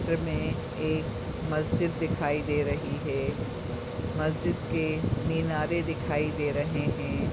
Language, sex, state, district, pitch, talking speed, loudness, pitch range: Hindi, female, Maharashtra, Nagpur, 145 Hz, 125 wpm, -30 LUFS, 120-155 Hz